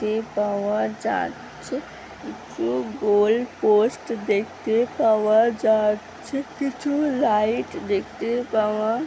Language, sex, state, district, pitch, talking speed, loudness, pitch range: Bengali, female, West Bengal, Malda, 220 Hz, 85 wpm, -23 LUFS, 210-235 Hz